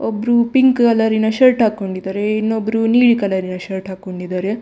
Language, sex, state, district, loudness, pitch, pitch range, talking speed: Kannada, female, Karnataka, Dakshina Kannada, -16 LUFS, 220 Hz, 190-235 Hz, 130 wpm